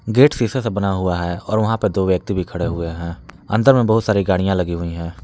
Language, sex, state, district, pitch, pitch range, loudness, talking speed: Hindi, male, Jharkhand, Palamu, 95 Hz, 85-110 Hz, -18 LUFS, 265 wpm